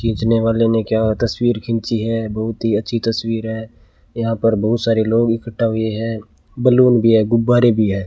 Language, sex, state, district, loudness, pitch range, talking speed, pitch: Hindi, male, Rajasthan, Bikaner, -17 LUFS, 110-115 Hz, 200 wpm, 115 Hz